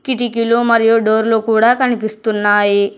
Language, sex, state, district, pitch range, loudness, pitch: Telugu, male, Telangana, Hyderabad, 215-235 Hz, -14 LUFS, 225 Hz